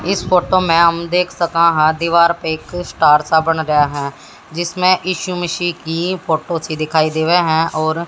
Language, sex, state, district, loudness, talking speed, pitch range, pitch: Hindi, female, Haryana, Jhajjar, -15 LUFS, 185 wpm, 160-175 Hz, 170 Hz